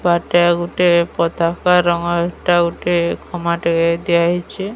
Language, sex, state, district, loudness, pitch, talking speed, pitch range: Odia, female, Odisha, Sambalpur, -16 LUFS, 175 Hz, 125 wpm, 170-175 Hz